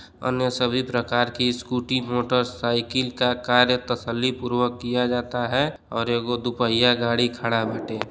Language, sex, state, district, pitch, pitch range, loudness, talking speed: Bhojpuri, male, Uttar Pradesh, Deoria, 125 Hz, 120-125 Hz, -23 LUFS, 150 wpm